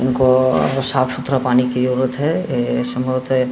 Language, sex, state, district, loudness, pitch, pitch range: Hindi, male, Bihar, Saran, -17 LUFS, 130 Hz, 125-130 Hz